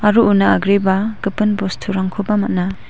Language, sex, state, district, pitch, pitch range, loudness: Garo, female, Meghalaya, West Garo Hills, 200 Hz, 195-210 Hz, -16 LUFS